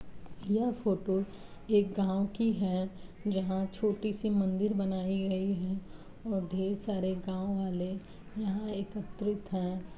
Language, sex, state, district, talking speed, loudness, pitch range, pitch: Hindi, female, Uttar Pradesh, Jalaun, 125 wpm, -33 LUFS, 190-205 Hz, 195 Hz